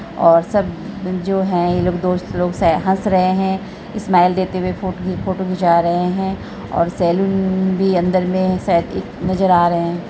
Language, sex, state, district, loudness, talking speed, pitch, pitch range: Hindi, female, Bihar, Araria, -17 LUFS, 190 wpm, 185 Hz, 175-190 Hz